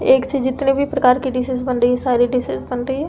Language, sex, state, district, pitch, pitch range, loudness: Hindi, female, Uttar Pradesh, Deoria, 260 Hz, 250-270 Hz, -18 LUFS